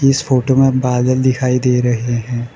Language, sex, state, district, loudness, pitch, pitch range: Hindi, male, Arunachal Pradesh, Lower Dibang Valley, -15 LUFS, 125 Hz, 125-130 Hz